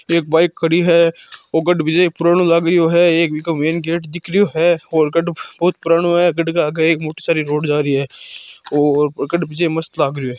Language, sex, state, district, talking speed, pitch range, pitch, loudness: Marwari, male, Rajasthan, Churu, 210 wpm, 155-170 Hz, 165 Hz, -16 LUFS